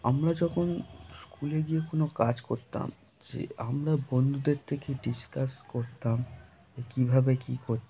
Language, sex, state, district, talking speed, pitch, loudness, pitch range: Bengali, male, West Bengal, North 24 Parganas, 130 wpm, 130 Hz, -31 LUFS, 120-145 Hz